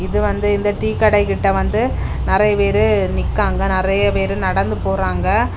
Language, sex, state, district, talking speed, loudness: Tamil, female, Tamil Nadu, Kanyakumari, 140 wpm, -17 LUFS